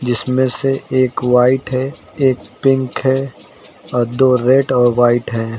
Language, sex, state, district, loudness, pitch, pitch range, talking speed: Hindi, male, Uttar Pradesh, Lucknow, -15 LUFS, 130 Hz, 120-130 Hz, 150 wpm